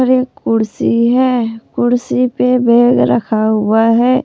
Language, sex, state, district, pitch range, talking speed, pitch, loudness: Hindi, female, Jharkhand, Palamu, 225-255 Hz, 125 wpm, 240 Hz, -13 LUFS